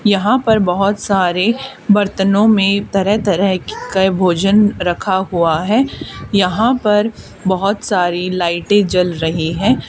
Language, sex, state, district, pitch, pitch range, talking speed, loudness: Hindi, female, Haryana, Charkhi Dadri, 195 Hz, 180-210 Hz, 125 wpm, -15 LUFS